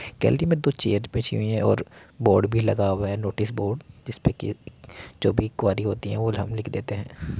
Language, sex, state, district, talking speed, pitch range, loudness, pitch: Hindi, male, Uttar Pradesh, Muzaffarnagar, 235 wpm, 100-115 Hz, -25 LUFS, 105 Hz